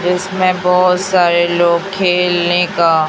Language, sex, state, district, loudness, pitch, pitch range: Hindi, female, Chhattisgarh, Raipur, -13 LUFS, 180 Hz, 175-185 Hz